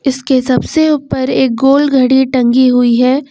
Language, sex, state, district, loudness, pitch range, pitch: Hindi, female, Uttar Pradesh, Lucknow, -11 LUFS, 255-275 Hz, 260 Hz